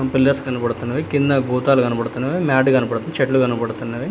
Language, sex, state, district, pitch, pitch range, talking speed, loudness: Telugu, male, Telangana, Hyderabad, 130 Hz, 120-135 Hz, 130 wpm, -19 LUFS